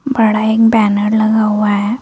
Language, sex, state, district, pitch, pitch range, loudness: Hindi, female, Bihar, Gaya, 220 Hz, 210-225 Hz, -12 LUFS